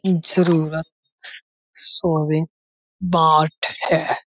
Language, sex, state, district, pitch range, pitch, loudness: Hindi, male, Uttar Pradesh, Budaun, 155-175 Hz, 160 Hz, -17 LUFS